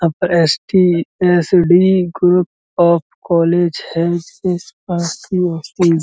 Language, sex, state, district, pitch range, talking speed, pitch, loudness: Hindi, male, Uttar Pradesh, Muzaffarnagar, 170-180 Hz, 70 wpm, 175 Hz, -15 LUFS